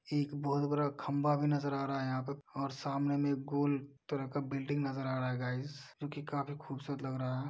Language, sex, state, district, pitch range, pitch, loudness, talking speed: Hindi, male, Uttar Pradesh, Deoria, 135-145 Hz, 140 Hz, -36 LUFS, 240 wpm